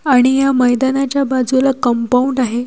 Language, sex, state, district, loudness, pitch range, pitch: Marathi, female, Maharashtra, Washim, -14 LUFS, 250-270 Hz, 260 Hz